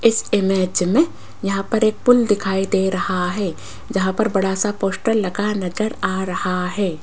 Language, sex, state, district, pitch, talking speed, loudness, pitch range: Hindi, female, Rajasthan, Jaipur, 195 Hz, 190 wpm, -19 LUFS, 190-215 Hz